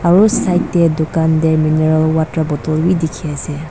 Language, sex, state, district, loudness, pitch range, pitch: Nagamese, female, Nagaland, Dimapur, -15 LUFS, 155-170 Hz, 160 Hz